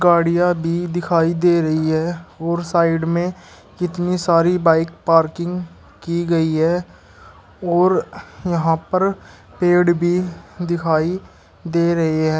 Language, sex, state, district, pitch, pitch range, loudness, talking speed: Hindi, male, Uttar Pradesh, Shamli, 170 Hz, 165-175 Hz, -18 LUFS, 120 wpm